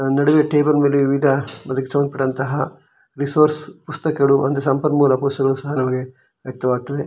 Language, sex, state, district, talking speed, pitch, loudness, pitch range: Kannada, male, Karnataka, Shimoga, 155 wpm, 140 Hz, -18 LUFS, 135-145 Hz